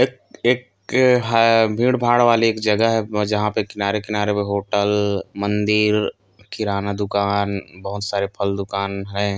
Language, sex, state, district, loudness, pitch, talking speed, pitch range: Hindi, male, Chhattisgarh, Kabirdham, -20 LUFS, 105 Hz, 135 wpm, 100-115 Hz